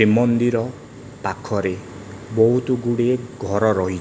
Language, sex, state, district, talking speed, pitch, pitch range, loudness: Odia, male, Odisha, Khordha, 105 wpm, 115 Hz, 100-125 Hz, -20 LUFS